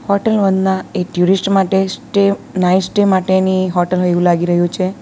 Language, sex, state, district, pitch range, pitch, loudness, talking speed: Gujarati, female, Gujarat, Valsad, 180-195 Hz, 190 Hz, -15 LUFS, 180 wpm